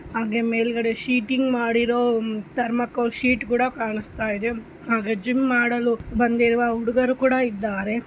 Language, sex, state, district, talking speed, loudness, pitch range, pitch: Kannada, female, Karnataka, Shimoga, 110 wpm, -22 LUFS, 230-245 Hz, 235 Hz